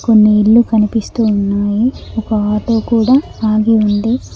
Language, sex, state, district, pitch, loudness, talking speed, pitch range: Telugu, female, Telangana, Mahabubabad, 220 Hz, -13 LUFS, 110 wpm, 210-225 Hz